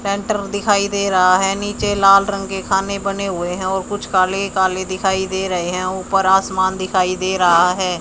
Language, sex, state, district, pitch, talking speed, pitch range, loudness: Hindi, male, Haryana, Charkhi Dadri, 190 Hz, 200 wpm, 185-200 Hz, -17 LUFS